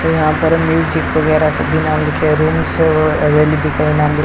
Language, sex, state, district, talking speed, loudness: Hindi, male, Rajasthan, Bikaner, 200 wpm, -14 LUFS